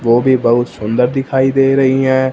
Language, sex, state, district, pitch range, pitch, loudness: Hindi, male, Punjab, Fazilka, 120-135 Hz, 130 Hz, -13 LUFS